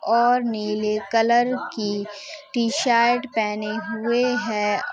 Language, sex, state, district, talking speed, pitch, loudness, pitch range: Hindi, female, Uttar Pradesh, Hamirpur, 95 wpm, 230 Hz, -22 LUFS, 210-245 Hz